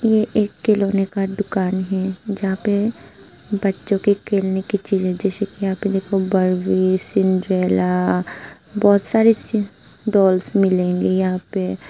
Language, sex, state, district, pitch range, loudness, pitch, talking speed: Hindi, female, Tripura, Unakoti, 185-205 Hz, -19 LUFS, 195 Hz, 120 wpm